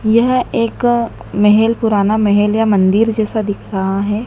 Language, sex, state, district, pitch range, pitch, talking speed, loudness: Hindi, female, Madhya Pradesh, Dhar, 205-230 Hz, 215 Hz, 155 wpm, -14 LUFS